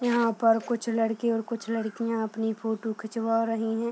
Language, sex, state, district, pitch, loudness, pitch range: Hindi, female, Bihar, Purnia, 225 Hz, -28 LUFS, 225-230 Hz